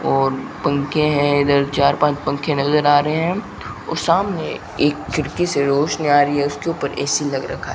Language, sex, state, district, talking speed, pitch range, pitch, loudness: Hindi, male, Rajasthan, Bikaner, 200 wpm, 140-150 Hz, 145 Hz, -18 LUFS